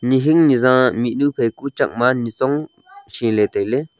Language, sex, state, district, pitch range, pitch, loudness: Wancho, male, Arunachal Pradesh, Longding, 120-145 Hz, 130 Hz, -17 LUFS